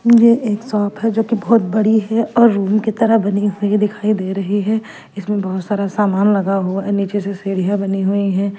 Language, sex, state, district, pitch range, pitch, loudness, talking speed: Hindi, female, Punjab, Fazilka, 195-220 Hz, 205 Hz, -16 LUFS, 225 wpm